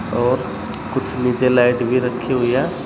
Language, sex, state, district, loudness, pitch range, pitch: Hindi, male, Uttar Pradesh, Saharanpur, -18 LUFS, 120-130 Hz, 125 Hz